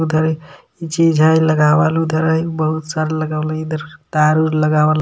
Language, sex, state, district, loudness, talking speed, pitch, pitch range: Magahi, male, Jharkhand, Palamu, -16 LUFS, 145 wpm, 155 Hz, 155-160 Hz